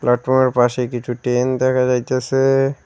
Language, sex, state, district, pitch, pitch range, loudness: Bengali, male, West Bengal, Cooch Behar, 130 Hz, 125-130 Hz, -17 LUFS